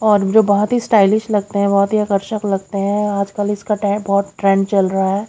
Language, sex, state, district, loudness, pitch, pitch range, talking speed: Hindi, female, Haryana, Jhajjar, -16 LUFS, 200 Hz, 200-210 Hz, 240 wpm